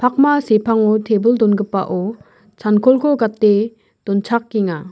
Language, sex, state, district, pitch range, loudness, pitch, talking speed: Garo, female, Meghalaya, West Garo Hills, 205-235 Hz, -16 LUFS, 215 Hz, 85 wpm